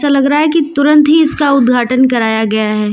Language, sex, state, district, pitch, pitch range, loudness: Hindi, female, Uttar Pradesh, Lucknow, 275 Hz, 235-300 Hz, -11 LUFS